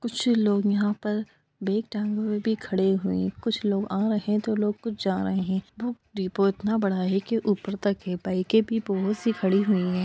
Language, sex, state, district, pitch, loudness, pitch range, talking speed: Hindi, female, Bihar, East Champaran, 205 Hz, -26 LUFS, 190-220 Hz, 225 wpm